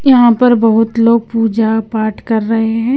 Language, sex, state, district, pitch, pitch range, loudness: Hindi, female, Punjab, Kapurthala, 225 Hz, 225-235 Hz, -12 LUFS